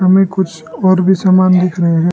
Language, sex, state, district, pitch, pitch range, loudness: Hindi, male, Arunachal Pradesh, Lower Dibang Valley, 185 Hz, 175-190 Hz, -12 LUFS